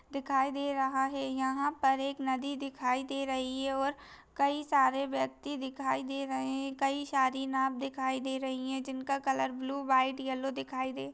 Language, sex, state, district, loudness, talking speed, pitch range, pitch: Hindi, female, Uttarakhand, Tehri Garhwal, -33 LUFS, 185 wpm, 265-275 Hz, 270 Hz